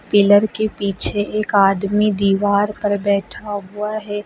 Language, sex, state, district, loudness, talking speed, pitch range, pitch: Hindi, female, Uttar Pradesh, Lucknow, -18 LUFS, 140 wpm, 200-210 Hz, 205 Hz